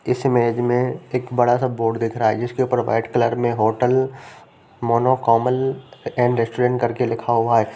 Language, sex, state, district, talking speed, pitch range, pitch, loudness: Hindi, male, Uttar Pradesh, Jalaun, 185 wpm, 115-125 Hz, 120 Hz, -20 LUFS